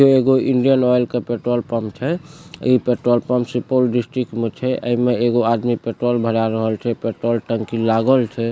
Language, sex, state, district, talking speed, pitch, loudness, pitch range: Maithili, male, Bihar, Supaul, 185 wpm, 120 Hz, -19 LUFS, 115-125 Hz